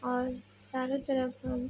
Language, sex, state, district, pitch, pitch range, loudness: Hindi, female, Uttar Pradesh, Budaun, 255 Hz, 250-260 Hz, -34 LUFS